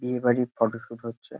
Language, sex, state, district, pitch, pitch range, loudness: Bengali, male, West Bengal, Kolkata, 120 Hz, 115-125 Hz, -26 LUFS